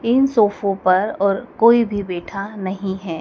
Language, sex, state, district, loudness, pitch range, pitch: Hindi, female, Madhya Pradesh, Dhar, -18 LUFS, 190-230 Hz, 200 Hz